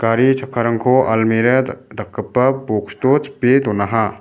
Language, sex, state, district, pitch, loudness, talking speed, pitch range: Garo, male, Meghalaya, West Garo Hills, 120 Hz, -16 LUFS, 115 wpm, 110-130 Hz